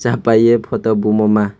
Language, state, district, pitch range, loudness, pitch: Kokborok, Tripura, West Tripura, 105-115 Hz, -14 LUFS, 110 Hz